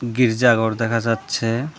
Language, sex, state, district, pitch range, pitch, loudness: Bengali, male, Tripura, Dhalai, 115-120 Hz, 115 Hz, -19 LUFS